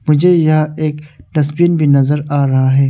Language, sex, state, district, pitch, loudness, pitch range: Hindi, male, Arunachal Pradesh, Longding, 150 Hz, -13 LUFS, 140-155 Hz